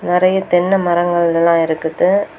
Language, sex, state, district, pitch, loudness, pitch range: Tamil, female, Tamil Nadu, Kanyakumari, 175 Hz, -15 LUFS, 170-190 Hz